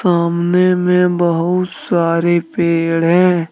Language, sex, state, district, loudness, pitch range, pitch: Hindi, male, Jharkhand, Deoghar, -14 LUFS, 170-180 Hz, 175 Hz